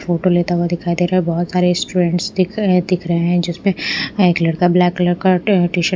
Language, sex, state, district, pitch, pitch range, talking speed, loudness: Hindi, female, Punjab, Pathankot, 175 Hz, 175-185 Hz, 240 wpm, -16 LUFS